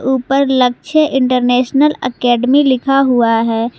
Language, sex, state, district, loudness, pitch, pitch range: Hindi, female, Jharkhand, Garhwa, -13 LUFS, 255 Hz, 245-275 Hz